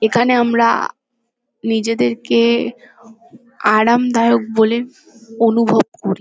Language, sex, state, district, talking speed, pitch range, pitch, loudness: Bengali, female, West Bengal, Kolkata, 70 wpm, 225-235 Hz, 230 Hz, -15 LUFS